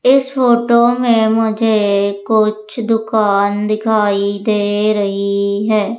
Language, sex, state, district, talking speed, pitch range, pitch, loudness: Hindi, female, Madhya Pradesh, Umaria, 100 wpm, 205-225 Hz, 215 Hz, -14 LUFS